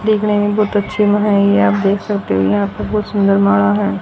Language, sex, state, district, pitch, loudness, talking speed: Hindi, female, Haryana, Jhajjar, 200 Hz, -14 LUFS, 240 wpm